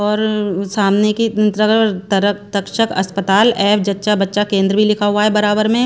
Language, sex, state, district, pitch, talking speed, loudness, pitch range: Hindi, female, Haryana, Charkhi Dadri, 205 Hz, 185 wpm, -15 LUFS, 200-215 Hz